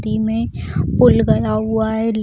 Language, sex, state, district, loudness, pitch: Hindi, female, Bihar, Muzaffarpur, -17 LUFS, 110 Hz